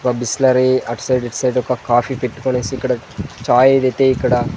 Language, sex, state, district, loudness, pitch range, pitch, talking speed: Telugu, male, Andhra Pradesh, Sri Satya Sai, -16 LUFS, 120-130 Hz, 125 Hz, 160 wpm